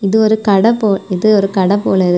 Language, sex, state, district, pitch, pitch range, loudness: Tamil, female, Tamil Nadu, Kanyakumari, 200 Hz, 190-215 Hz, -13 LUFS